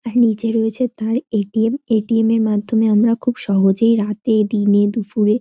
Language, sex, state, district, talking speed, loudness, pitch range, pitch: Bengali, female, West Bengal, North 24 Parganas, 155 wpm, -17 LUFS, 210-230 Hz, 220 Hz